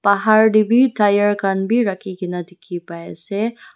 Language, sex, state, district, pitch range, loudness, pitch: Nagamese, female, Nagaland, Dimapur, 190-220 Hz, -17 LUFS, 205 Hz